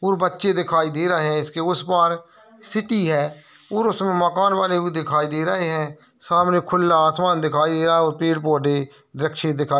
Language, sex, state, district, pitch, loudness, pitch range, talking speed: Hindi, male, Bihar, Lakhisarai, 165 Hz, -20 LUFS, 155-180 Hz, 200 wpm